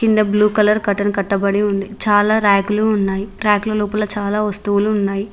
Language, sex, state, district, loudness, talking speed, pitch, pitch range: Telugu, female, Telangana, Mahabubabad, -16 LUFS, 180 wpm, 205 Hz, 200-210 Hz